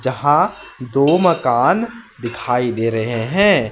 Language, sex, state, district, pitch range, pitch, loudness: Hindi, male, West Bengal, Alipurduar, 120-175 Hz, 130 Hz, -16 LUFS